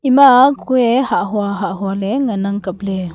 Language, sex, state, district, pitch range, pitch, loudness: Wancho, female, Arunachal Pradesh, Longding, 195-260 Hz, 205 Hz, -15 LUFS